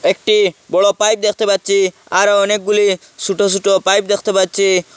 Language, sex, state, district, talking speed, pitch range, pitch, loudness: Bengali, male, Assam, Hailakandi, 145 wpm, 195-210 Hz, 200 Hz, -14 LUFS